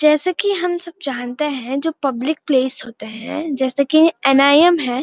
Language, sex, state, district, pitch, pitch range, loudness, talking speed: Hindi, female, Uttarakhand, Uttarkashi, 290 Hz, 260-325 Hz, -17 LUFS, 225 wpm